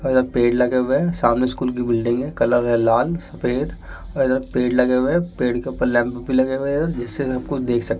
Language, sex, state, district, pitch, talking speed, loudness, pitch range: Hindi, male, Delhi, New Delhi, 125 Hz, 265 wpm, -20 LUFS, 120-130 Hz